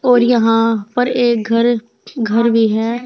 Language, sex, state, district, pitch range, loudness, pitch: Hindi, female, Uttar Pradesh, Saharanpur, 225-245 Hz, -15 LUFS, 235 Hz